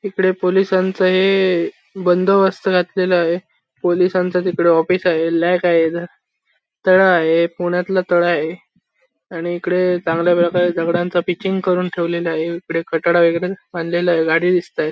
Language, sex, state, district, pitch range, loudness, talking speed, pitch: Marathi, male, Maharashtra, Sindhudurg, 170-185 Hz, -17 LUFS, 135 wpm, 175 Hz